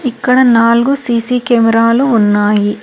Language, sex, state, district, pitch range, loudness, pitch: Telugu, female, Telangana, Hyderabad, 225-250 Hz, -11 LUFS, 235 Hz